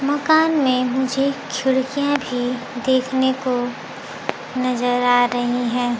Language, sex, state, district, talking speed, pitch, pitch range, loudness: Hindi, female, Bihar, Kaimur, 110 wpm, 255 Hz, 245-270 Hz, -20 LUFS